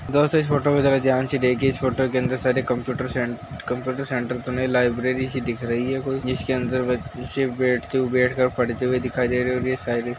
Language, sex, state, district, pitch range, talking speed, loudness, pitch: Hindi, male, Uttar Pradesh, Hamirpur, 125-130 Hz, 240 wpm, -23 LUFS, 130 Hz